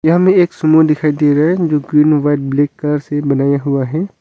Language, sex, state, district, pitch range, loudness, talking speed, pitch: Hindi, male, Arunachal Pradesh, Longding, 145-160 Hz, -13 LUFS, 240 wpm, 150 Hz